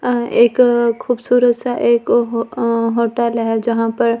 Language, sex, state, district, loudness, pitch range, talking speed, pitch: Hindi, female, Delhi, New Delhi, -15 LUFS, 230-240 Hz, 170 wpm, 235 Hz